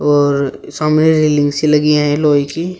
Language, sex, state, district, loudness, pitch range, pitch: Hindi, male, Uttar Pradesh, Shamli, -13 LUFS, 145-155 Hz, 150 Hz